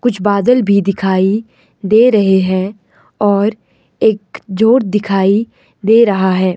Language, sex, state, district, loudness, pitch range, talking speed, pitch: Hindi, male, Himachal Pradesh, Shimla, -13 LUFS, 190-220 Hz, 130 wpm, 200 Hz